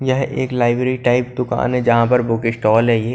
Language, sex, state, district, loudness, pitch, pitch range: Hindi, male, Punjab, Kapurthala, -17 LUFS, 120 Hz, 115-125 Hz